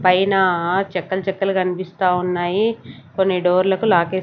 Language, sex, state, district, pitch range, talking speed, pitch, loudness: Telugu, female, Andhra Pradesh, Sri Satya Sai, 180-190 Hz, 130 wpm, 185 Hz, -19 LUFS